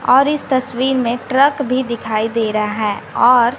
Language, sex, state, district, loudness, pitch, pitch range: Hindi, female, Bihar, West Champaran, -16 LUFS, 250 Hz, 225-260 Hz